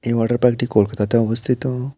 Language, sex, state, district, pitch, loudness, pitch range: Bengali, male, West Bengal, Alipurduar, 120 Hz, -19 LUFS, 115-125 Hz